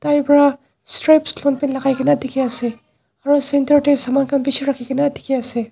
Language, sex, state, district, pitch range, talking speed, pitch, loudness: Nagamese, male, Nagaland, Dimapur, 265-285 Hz, 200 wpm, 280 Hz, -17 LUFS